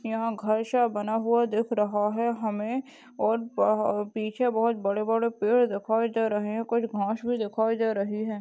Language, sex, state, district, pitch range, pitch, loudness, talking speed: Hindi, female, Chhattisgarh, Balrampur, 215-230 Hz, 225 Hz, -27 LUFS, 190 wpm